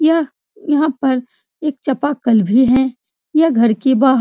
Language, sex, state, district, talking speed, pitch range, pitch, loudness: Hindi, female, Bihar, Supaul, 170 wpm, 255-305 Hz, 265 Hz, -16 LUFS